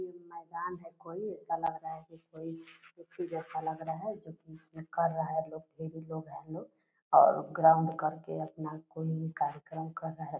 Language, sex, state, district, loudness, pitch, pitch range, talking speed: Hindi, female, Bihar, Purnia, -33 LUFS, 160 Hz, 160-165 Hz, 195 wpm